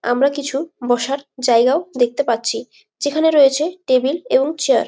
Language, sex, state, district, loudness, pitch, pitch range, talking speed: Bengali, female, West Bengal, Malda, -17 LUFS, 275 Hz, 250-305 Hz, 145 wpm